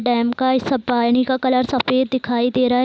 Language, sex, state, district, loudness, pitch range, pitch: Hindi, female, Bihar, Gopalganj, -18 LUFS, 245-260 Hz, 255 Hz